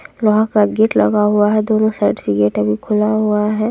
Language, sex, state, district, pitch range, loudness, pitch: Hindi, female, Bihar, Jamui, 210-215 Hz, -15 LUFS, 210 Hz